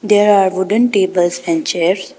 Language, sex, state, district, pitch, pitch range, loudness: English, female, Arunachal Pradesh, Papum Pare, 195 Hz, 185-215 Hz, -14 LUFS